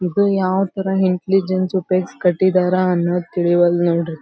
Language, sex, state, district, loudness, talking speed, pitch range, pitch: Kannada, female, Karnataka, Belgaum, -17 LUFS, 115 wpm, 175-190 Hz, 185 Hz